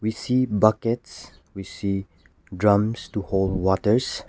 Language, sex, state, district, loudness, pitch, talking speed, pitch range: English, male, Nagaland, Kohima, -23 LUFS, 100 Hz, 125 wpm, 95-110 Hz